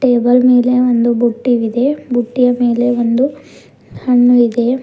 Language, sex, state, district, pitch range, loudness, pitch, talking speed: Kannada, female, Karnataka, Bidar, 240-250 Hz, -13 LUFS, 245 Hz, 125 wpm